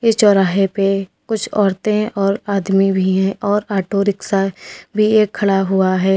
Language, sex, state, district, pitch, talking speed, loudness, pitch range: Hindi, female, Uttar Pradesh, Lalitpur, 195 Hz, 165 wpm, -16 LUFS, 195-210 Hz